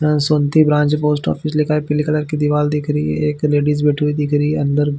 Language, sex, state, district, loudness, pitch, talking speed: Hindi, male, Chhattisgarh, Bilaspur, -17 LUFS, 150 Hz, 265 wpm